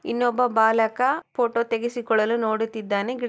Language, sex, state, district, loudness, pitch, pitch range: Kannada, female, Karnataka, Chamarajanagar, -23 LUFS, 235 Hz, 220-245 Hz